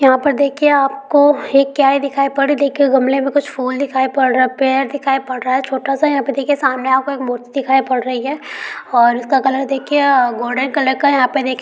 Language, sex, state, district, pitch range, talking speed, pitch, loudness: Hindi, female, Bihar, Gaya, 260-280 Hz, 225 wpm, 270 Hz, -15 LUFS